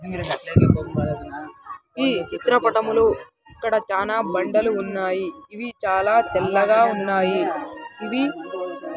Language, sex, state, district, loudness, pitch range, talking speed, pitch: Telugu, male, Andhra Pradesh, Sri Satya Sai, -21 LUFS, 190-235 Hz, 75 wpm, 215 Hz